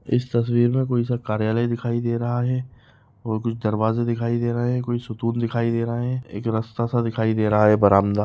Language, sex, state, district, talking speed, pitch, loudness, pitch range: Hindi, male, Maharashtra, Nagpur, 230 wpm, 115 Hz, -22 LUFS, 110-120 Hz